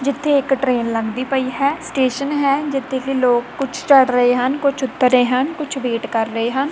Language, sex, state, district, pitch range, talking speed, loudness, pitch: Punjabi, female, Punjab, Kapurthala, 250-280 Hz, 215 wpm, -18 LUFS, 265 Hz